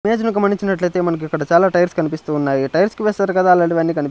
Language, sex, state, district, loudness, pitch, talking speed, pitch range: Telugu, male, Andhra Pradesh, Sri Satya Sai, -17 LUFS, 175 Hz, 220 wpm, 160-195 Hz